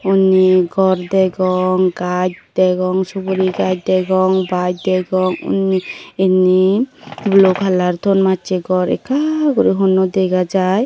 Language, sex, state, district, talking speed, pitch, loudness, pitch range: Chakma, female, Tripura, Dhalai, 120 wpm, 185 Hz, -15 LUFS, 185-190 Hz